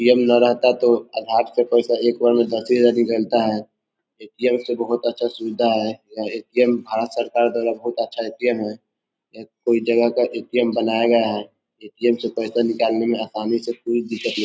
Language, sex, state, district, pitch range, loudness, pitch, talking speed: Hindi, male, Bihar, East Champaran, 115-120 Hz, -20 LUFS, 120 Hz, 200 wpm